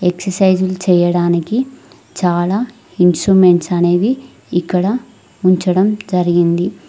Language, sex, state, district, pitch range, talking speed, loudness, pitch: Telugu, female, Telangana, Mahabubabad, 175-205 Hz, 70 wpm, -14 LUFS, 185 Hz